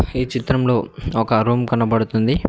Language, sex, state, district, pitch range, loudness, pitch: Telugu, male, Telangana, Mahabubabad, 110-125 Hz, -19 LUFS, 120 Hz